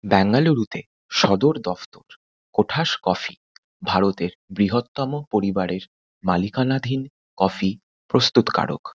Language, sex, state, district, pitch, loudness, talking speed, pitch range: Bengali, male, West Bengal, Kolkata, 100 Hz, -22 LUFS, 75 wpm, 95-130 Hz